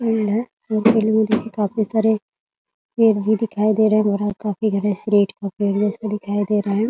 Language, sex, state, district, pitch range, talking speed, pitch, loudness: Hindi, female, Bihar, Muzaffarpur, 205-220 Hz, 165 wpm, 215 Hz, -19 LUFS